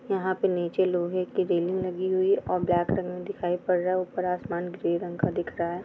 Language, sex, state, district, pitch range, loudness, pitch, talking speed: Hindi, female, Andhra Pradesh, Chittoor, 175-185 Hz, -27 LUFS, 180 Hz, 225 wpm